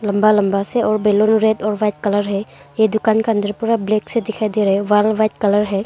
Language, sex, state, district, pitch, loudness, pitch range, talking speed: Hindi, female, Arunachal Pradesh, Longding, 215 Hz, -17 LUFS, 205-220 Hz, 245 wpm